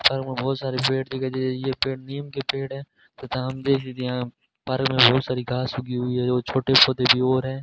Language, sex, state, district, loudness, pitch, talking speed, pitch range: Hindi, male, Rajasthan, Bikaner, -23 LUFS, 130 Hz, 260 wpm, 125-135 Hz